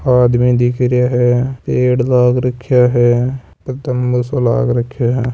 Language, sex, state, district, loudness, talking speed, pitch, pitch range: Marwari, male, Rajasthan, Nagaur, -14 LUFS, 155 wpm, 125 Hz, 120-125 Hz